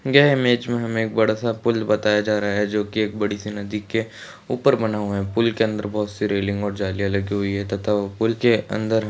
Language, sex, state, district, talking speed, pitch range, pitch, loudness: Hindi, male, Uttarakhand, Uttarkashi, 255 wpm, 105-115 Hz, 105 Hz, -22 LUFS